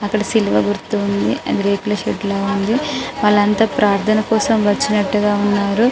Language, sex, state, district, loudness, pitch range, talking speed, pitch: Telugu, female, Telangana, Karimnagar, -17 LUFS, 200-215 Hz, 120 wpm, 210 Hz